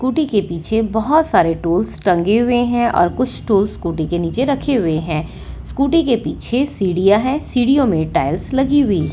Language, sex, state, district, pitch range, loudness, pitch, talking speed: Hindi, female, Delhi, New Delhi, 175-265 Hz, -17 LUFS, 225 Hz, 185 wpm